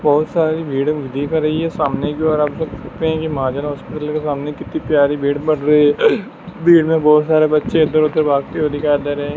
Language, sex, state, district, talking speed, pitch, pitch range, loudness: Hindi, male, Madhya Pradesh, Dhar, 205 wpm, 150 Hz, 145-155 Hz, -16 LUFS